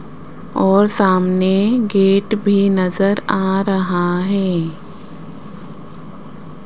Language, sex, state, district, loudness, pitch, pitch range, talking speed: Hindi, female, Rajasthan, Jaipur, -16 LUFS, 195 Hz, 185-200 Hz, 70 wpm